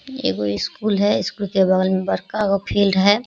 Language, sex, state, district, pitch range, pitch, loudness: Hindi, female, Bihar, Kishanganj, 190-210 Hz, 200 Hz, -19 LUFS